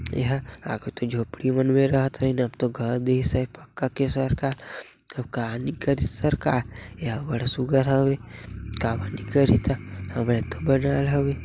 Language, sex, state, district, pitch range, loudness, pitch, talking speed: Chhattisgarhi, male, Chhattisgarh, Sarguja, 115-135 Hz, -25 LUFS, 130 Hz, 160 wpm